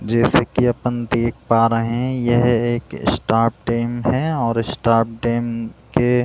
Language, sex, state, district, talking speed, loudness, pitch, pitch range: Hindi, male, Bihar, Jahanabad, 145 wpm, -19 LUFS, 120 Hz, 115-120 Hz